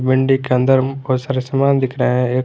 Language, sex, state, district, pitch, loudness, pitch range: Hindi, male, Jharkhand, Garhwa, 130 Hz, -16 LUFS, 130-135 Hz